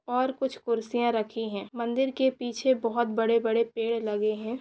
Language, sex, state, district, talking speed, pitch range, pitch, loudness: Hindi, female, Chhattisgarh, Korba, 170 wpm, 225-250 Hz, 235 Hz, -28 LUFS